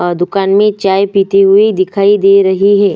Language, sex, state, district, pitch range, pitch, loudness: Hindi, female, Chhattisgarh, Sukma, 190-200 Hz, 195 Hz, -10 LUFS